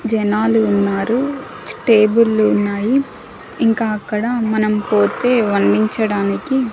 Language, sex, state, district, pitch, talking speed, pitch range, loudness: Telugu, female, Andhra Pradesh, Annamaya, 220 Hz, 80 wpm, 210-235 Hz, -16 LUFS